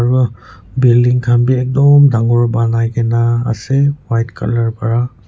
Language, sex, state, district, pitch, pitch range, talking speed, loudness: Nagamese, male, Nagaland, Kohima, 120 Hz, 115-125 Hz, 135 wpm, -13 LUFS